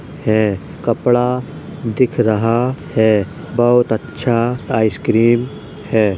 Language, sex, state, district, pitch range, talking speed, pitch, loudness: Hindi, male, Uttar Pradesh, Jalaun, 110-125 Hz, 85 wpm, 120 Hz, -16 LUFS